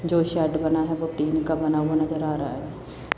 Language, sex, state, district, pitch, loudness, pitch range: Hindi, female, Chandigarh, Chandigarh, 155 Hz, -24 LUFS, 155-160 Hz